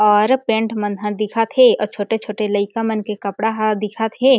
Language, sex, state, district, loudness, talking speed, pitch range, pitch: Chhattisgarhi, female, Chhattisgarh, Jashpur, -18 LUFS, 190 wpm, 210-225 Hz, 215 Hz